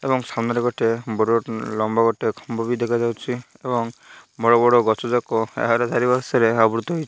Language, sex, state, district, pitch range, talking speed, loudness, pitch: Odia, male, Odisha, Malkangiri, 115-120 Hz, 170 wpm, -21 LUFS, 120 Hz